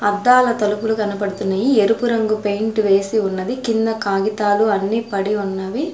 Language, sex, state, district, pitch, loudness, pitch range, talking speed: Telugu, female, Andhra Pradesh, Sri Satya Sai, 210 Hz, -18 LUFS, 200-225 Hz, 130 wpm